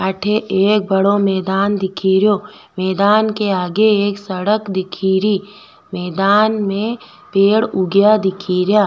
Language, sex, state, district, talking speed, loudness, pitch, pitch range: Rajasthani, female, Rajasthan, Nagaur, 130 wpm, -16 LUFS, 200 Hz, 190-210 Hz